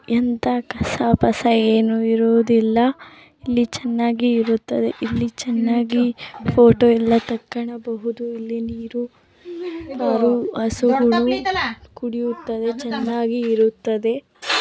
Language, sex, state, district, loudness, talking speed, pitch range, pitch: Kannada, female, Karnataka, Dharwad, -19 LUFS, 80 wpm, 230-240 Hz, 235 Hz